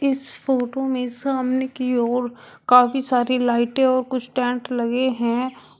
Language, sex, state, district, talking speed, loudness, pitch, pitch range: Hindi, female, Uttar Pradesh, Shamli, 145 wpm, -21 LUFS, 255 Hz, 245-260 Hz